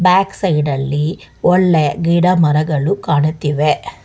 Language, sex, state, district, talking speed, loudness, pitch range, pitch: Kannada, female, Karnataka, Bangalore, 75 wpm, -15 LUFS, 150-180 Hz, 155 Hz